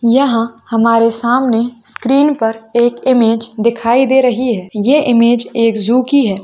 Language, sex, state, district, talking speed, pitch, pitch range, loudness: Hindi, female, Bihar, Jamui, 160 wpm, 235 Hz, 230-255 Hz, -13 LUFS